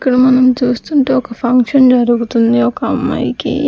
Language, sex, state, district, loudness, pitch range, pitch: Telugu, female, Andhra Pradesh, Sri Satya Sai, -12 LUFS, 240-265 Hz, 255 Hz